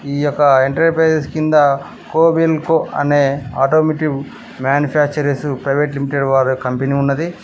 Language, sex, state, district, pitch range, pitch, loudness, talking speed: Telugu, male, Telangana, Mahabubabad, 140-155 Hz, 145 Hz, -15 LUFS, 105 wpm